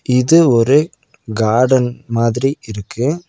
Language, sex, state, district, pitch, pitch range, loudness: Tamil, male, Tamil Nadu, Nilgiris, 125 Hz, 115-150 Hz, -14 LUFS